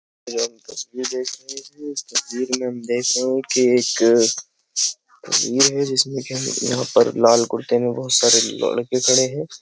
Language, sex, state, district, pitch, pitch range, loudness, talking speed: Hindi, male, Uttar Pradesh, Jyotiba Phule Nagar, 125 Hz, 120-130 Hz, -19 LUFS, 185 wpm